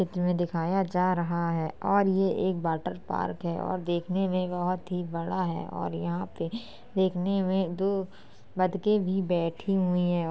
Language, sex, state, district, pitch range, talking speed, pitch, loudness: Hindi, male, Uttar Pradesh, Jalaun, 170-190 Hz, 170 wpm, 180 Hz, -29 LUFS